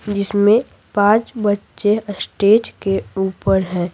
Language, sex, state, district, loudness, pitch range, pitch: Hindi, female, Bihar, Patna, -17 LUFS, 195-210 Hz, 205 Hz